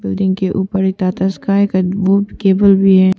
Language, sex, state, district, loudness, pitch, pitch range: Hindi, female, Arunachal Pradesh, Papum Pare, -14 LUFS, 190 Hz, 190-195 Hz